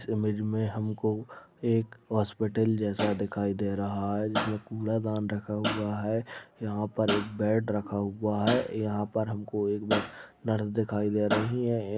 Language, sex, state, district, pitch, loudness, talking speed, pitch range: Hindi, male, Chhattisgarh, Rajnandgaon, 105 Hz, -30 LUFS, 160 wpm, 105-110 Hz